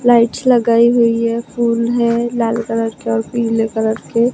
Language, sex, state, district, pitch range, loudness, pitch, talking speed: Hindi, female, Maharashtra, Gondia, 230-235 Hz, -15 LUFS, 230 Hz, 180 wpm